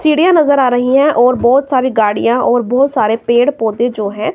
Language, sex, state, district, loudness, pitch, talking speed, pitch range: Hindi, female, Himachal Pradesh, Shimla, -12 LUFS, 250 Hz, 220 wpm, 235-275 Hz